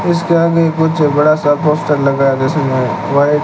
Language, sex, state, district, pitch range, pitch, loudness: Hindi, male, Rajasthan, Bikaner, 140-160 Hz, 150 Hz, -13 LUFS